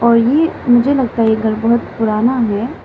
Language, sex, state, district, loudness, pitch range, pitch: Hindi, female, Arunachal Pradesh, Lower Dibang Valley, -14 LUFS, 220-250 Hz, 235 Hz